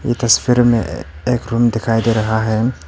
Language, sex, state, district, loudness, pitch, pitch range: Hindi, male, Arunachal Pradesh, Papum Pare, -16 LUFS, 115 Hz, 110-120 Hz